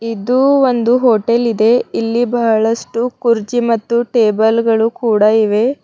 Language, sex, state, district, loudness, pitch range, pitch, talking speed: Kannada, female, Karnataka, Bidar, -14 LUFS, 225-240 Hz, 230 Hz, 115 wpm